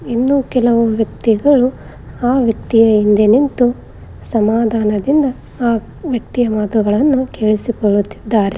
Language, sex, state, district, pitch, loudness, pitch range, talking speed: Kannada, female, Karnataka, Koppal, 230 Hz, -14 LUFS, 215-250 Hz, 85 wpm